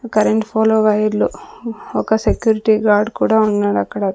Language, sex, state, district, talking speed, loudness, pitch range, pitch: Telugu, female, Andhra Pradesh, Sri Satya Sai, 115 wpm, -16 LUFS, 210-220 Hz, 215 Hz